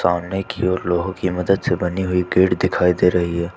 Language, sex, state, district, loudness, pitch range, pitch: Hindi, male, Jharkhand, Ranchi, -19 LUFS, 90-95 Hz, 90 Hz